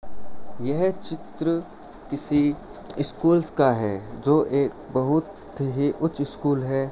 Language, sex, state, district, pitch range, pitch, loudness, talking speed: Hindi, male, Rajasthan, Bikaner, 135-160 Hz, 145 Hz, -20 LUFS, 115 wpm